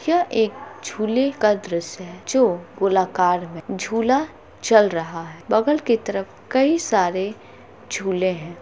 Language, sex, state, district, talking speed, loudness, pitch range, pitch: Hindi, female, Bihar, Gopalganj, 145 wpm, -21 LUFS, 180-250 Hz, 210 Hz